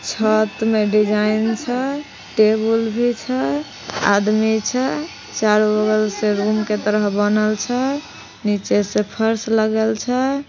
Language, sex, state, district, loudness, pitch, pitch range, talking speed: Maithili, female, Bihar, Samastipur, -19 LUFS, 215 Hz, 210-230 Hz, 125 wpm